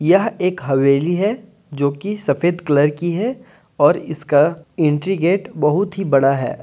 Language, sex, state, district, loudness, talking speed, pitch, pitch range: Hindi, male, Jharkhand, Deoghar, -18 LUFS, 165 wpm, 165 Hz, 145-195 Hz